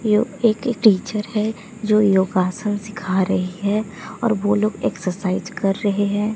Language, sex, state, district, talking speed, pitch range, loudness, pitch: Hindi, female, Odisha, Sambalpur, 150 wpm, 190-215 Hz, -20 LUFS, 205 Hz